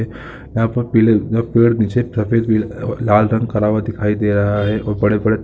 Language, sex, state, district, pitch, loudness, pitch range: Hindi, male, Chhattisgarh, Korba, 110 Hz, -16 LUFS, 105-115 Hz